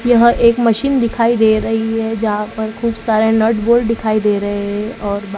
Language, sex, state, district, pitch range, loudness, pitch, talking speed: Hindi, female, Maharashtra, Gondia, 215-235 Hz, -15 LUFS, 225 Hz, 210 wpm